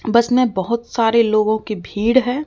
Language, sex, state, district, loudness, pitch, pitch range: Hindi, female, Rajasthan, Jaipur, -17 LUFS, 230 Hz, 215-245 Hz